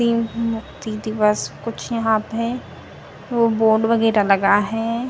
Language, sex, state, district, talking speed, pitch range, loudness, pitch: Garhwali, female, Uttarakhand, Tehri Garhwal, 120 wpm, 215-230 Hz, -20 LUFS, 225 Hz